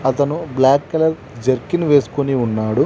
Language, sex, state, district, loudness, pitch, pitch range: Telugu, male, Telangana, Mahabubabad, -17 LUFS, 135 Hz, 130-150 Hz